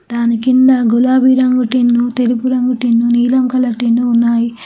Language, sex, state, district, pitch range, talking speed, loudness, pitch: Telugu, female, Telangana, Hyderabad, 235-255 Hz, 155 wpm, -12 LUFS, 245 Hz